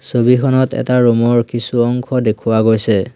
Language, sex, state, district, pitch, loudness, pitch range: Assamese, male, Assam, Hailakandi, 120 Hz, -14 LUFS, 115-125 Hz